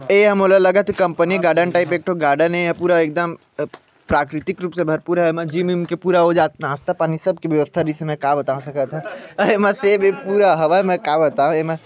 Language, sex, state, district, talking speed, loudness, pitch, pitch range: Chhattisgarhi, male, Chhattisgarh, Bilaspur, 230 wpm, -17 LUFS, 170 Hz, 155-185 Hz